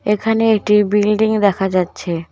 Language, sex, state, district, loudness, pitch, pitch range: Bengali, female, West Bengal, Cooch Behar, -16 LUFS, 210 Hz, 195-215 Hz